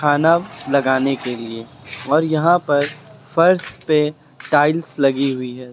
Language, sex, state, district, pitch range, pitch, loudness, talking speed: Hindi, male, Uttar Pradesh, Lucknow, 135-155 Hz, 145 Hz, -18 LUFS, 135 wpm